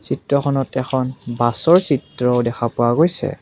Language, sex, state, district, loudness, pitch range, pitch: Assamese, male, Assam, Kamrup Metropolitan, -18 LUFS, 120-140 Hz, 130 Hz